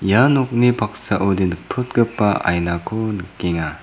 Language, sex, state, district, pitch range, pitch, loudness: Garo, male, Meghalaya, South Garo Hills, 90-115 Hz, 100 Hz, -19 LUFS